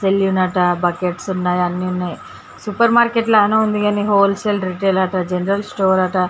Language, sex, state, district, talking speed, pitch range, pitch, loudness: Telugu, female, Telangana, Karimnagar, 180 wpm, 180-210 Hz, 190 Hz, -17 LUFS